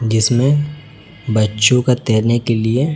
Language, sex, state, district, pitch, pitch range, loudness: Hindi, male, Chhattisgarh, Raipur, 120 Hz, 110-140 Hz, -15 LUFS